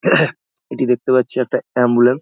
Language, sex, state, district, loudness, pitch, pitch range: Bengali, male, West Bengal, Dakshin Dinajpur, -17 LUFS, 125 Hz, 120-130 Hz